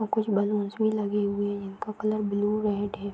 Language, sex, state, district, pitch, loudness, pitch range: Hindi, female, Bihar, Gopalganj, 205 Hz, -28 LUFS, 205-215 Hz